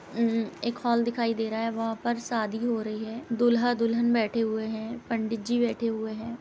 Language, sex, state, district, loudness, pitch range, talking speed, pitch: Hindi, female, Uttar Pradesh, Etah, -28 LUFS, 225-235 Hz, 215 wpm, 230 Hz